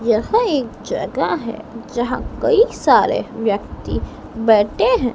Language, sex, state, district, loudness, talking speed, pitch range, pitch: Hindi, female, Madhya Pradesh, Dhar, -18 LUFS, 115 wpm, 225-280 Hz, 235 Hz